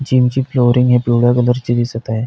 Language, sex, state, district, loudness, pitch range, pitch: Marathi, male, Maharashtra, Pune, -14 LUFS, 120-125 Hz, 125 Hz